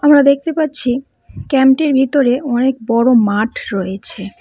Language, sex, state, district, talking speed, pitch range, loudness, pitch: Bengali, female, West Bengal, Cooch Behar, 135 wpm, 230-280 Hz, -14 LUFS, 255 Hz